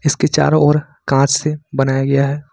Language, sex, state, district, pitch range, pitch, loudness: Hindi, male, Jharkhand, Ranchi, 140-150 Hz, 145 Hz, -15 LUFS